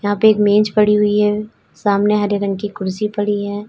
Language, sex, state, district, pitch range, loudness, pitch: Hindi, female, Uttar Pradesh, Lalitpur, 205-210 Hz, -16 LUFS, 205 Hz